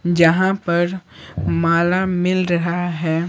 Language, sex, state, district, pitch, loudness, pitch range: Hindi, male, Bihar, Patna, 175 Hz, -18 LUFS, 170-185 Hz